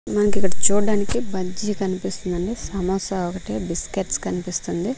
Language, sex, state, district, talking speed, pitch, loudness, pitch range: Telugu, female, Andhra Pradesh, Manyam, 110 wpm, 190 Hz, -23 LUFS, 180-205 Hz